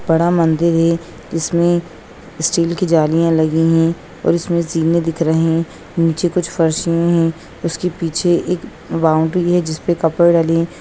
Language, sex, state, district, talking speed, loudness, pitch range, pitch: Hindi, female, Bihar, Sitamarhi, 165 wpm, -16 LUFS, 165-170 Hz, 165 Hz